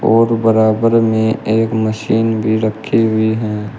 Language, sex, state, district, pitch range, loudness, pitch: Hindi, male, Uttar Pradesh, Shamli, 110-115 Hz, -14 LUFS, 110 Hz